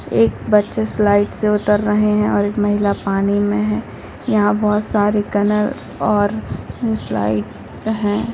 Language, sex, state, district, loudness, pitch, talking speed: Bhojpuri, female, Bihar, Saran, -17 LUFS, 205 Hz, 145 wpm